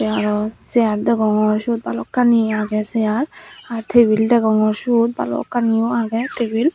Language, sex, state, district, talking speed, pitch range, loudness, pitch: Chakma, female, Tripura, Dhalai, 135 wpm, 215-235 Hz, -18 LUFS, 225 Hz